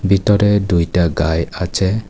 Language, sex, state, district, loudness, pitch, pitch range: Bengali, male, Tripura, West Tripura, -16 LUFS, 95 Hz, 85-100 Hz